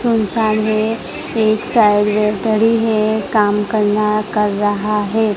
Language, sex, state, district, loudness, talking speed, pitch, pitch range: Hindi, female, Gujarat, Gandhinagar, -16 LUFS, 125 wpm, 215 Hz, 210-220 Hz